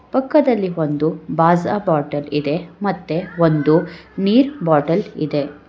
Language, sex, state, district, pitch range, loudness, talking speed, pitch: Kannada, female, Karnataka, Bangalore, 150-190 Hz, -18 LUFS, 105 wpm, 165 Hz